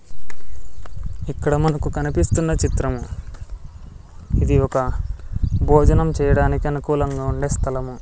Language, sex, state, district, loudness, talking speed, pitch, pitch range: Telugu, male, Andhra Pradesh, Sri Satya Sai, -20 LUFS, 80 wpm, 95 Hz, 85-140 Hz